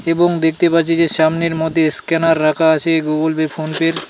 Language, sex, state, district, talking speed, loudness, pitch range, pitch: Bengali, male, West Bengal, Alipurduar, 220 wpm, -14 LUFS, 160-165 Hz, 160 Hz